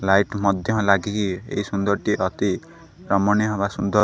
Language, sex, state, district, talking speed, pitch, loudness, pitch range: Odia, male, Odisha, Khordha, 150 wpm, 100 Hz, -22 LUFS, 100-105 Hz